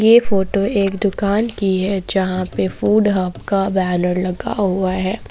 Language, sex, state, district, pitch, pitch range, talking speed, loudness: Hindi, female, Jharkhand, Ranchi, 195 Hz, 185-200 Hz, 170 wpm, -18 LUFS